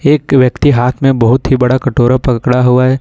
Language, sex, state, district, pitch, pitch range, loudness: Hindi, male, Jharkhand, Ranchi, 130 Hz, 125-135 Hz, -10 LUFS